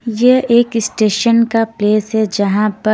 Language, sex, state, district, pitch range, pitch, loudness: Hindi, female, Haryana, Rohtak, 215-230 Hz, 220 Hz, -14 LUFS